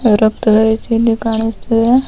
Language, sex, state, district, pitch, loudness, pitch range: Kannada, female, Karnataka, Chamarajanagar, 225 Hz, -14 LUFS, 220-230 Hz